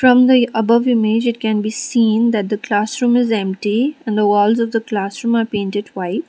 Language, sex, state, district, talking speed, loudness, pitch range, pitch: English, female, Sikkim, Gangtok, 190 wpm, -16 LUFS, 205-235 Hz, 225 Hz